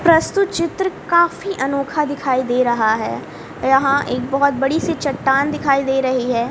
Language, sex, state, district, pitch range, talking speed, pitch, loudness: Hindi, female, Haryana, Rohtak, 260-325 Hz, 165 wpm, 275 Hz, -18 LUFS